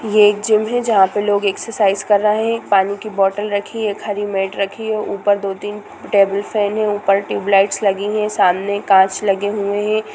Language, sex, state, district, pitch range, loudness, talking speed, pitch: Hindi, female, Bihar, Gopalganj, 200-210 Hz, -17 LUFS, 205 wpm, 205 Hz